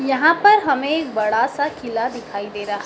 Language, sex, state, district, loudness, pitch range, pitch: Hindi, female, Madhya Pradesh, Dhar, -18 LUFS, 215-300 Hz, 260 Hz